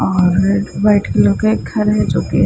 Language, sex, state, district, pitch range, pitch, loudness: Hindi, female, Bihar, Gaya, 190-210 Hz, 200 Hz, -14 LUFS